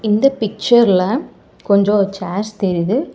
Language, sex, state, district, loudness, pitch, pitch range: Tamil, male, Tamil Nadu, Chennai, -16 LUFS, 205 Hz, 195-235 Hz